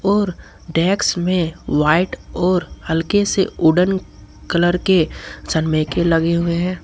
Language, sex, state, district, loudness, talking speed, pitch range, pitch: Hindi, male, Jharkhand, Ranchi, -18 LUFS, 125 wpm, 165-185 Hz, 175 Hz